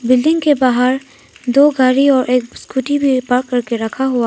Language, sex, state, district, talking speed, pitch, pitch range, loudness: Hindi, female, Arunachal Pradesh, Papum Pare, 180 wpm, 255 Hz, 250-275 Hz, -14 LUFS